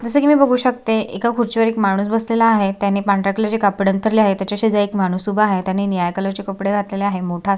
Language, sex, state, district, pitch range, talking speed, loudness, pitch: Marathi, female, Maharashtra, Sindhudurg, 195-225 Hz, 270 wpm, -17 LUFS, 205 Hz